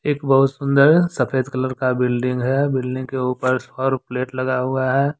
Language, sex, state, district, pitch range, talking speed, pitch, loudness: Hindi, male, Jharkhand, Deoghar, 130-135 Hz, 185 wpm, 130 Hz, -19 LUFS